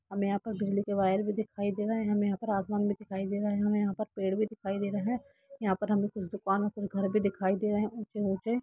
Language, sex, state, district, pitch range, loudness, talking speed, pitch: Hindi, female, Jharkhand, Jamtara, 200-210 Hz, -31 LUFS, 300 wpm, 205 Hz